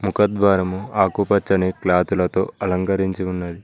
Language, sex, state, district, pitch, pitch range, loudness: Telugu, male, Telangana, Mahabubabad, 95 Hz, 90-100 Hz, -20 LUFS